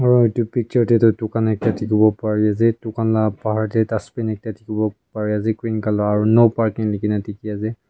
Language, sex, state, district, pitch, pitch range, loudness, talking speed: Nagamese, male, Nagaland, Kohima, 110 Hz, 105-115 Hz, -19 LUFS, 180 wpm